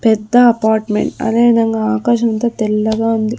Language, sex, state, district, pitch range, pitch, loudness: Telugu, female, Andhra Pradesh, Sri Satya Sai, 220-235 Hz, 225 Hz, -14 LUFS